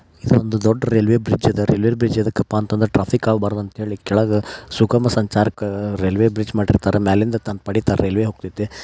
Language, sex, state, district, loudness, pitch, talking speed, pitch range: Kannada, male, Karnataka, Dharwad, -19 LUFS, 105 Hz, 145 wpm, 105-110 Hz